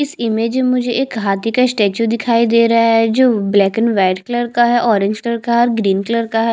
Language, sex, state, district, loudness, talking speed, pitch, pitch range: Hindi, female, Chhattisgarh, Jashpur, -15 LUFS, 255 wpm, 230 Hz, 220-240 Hz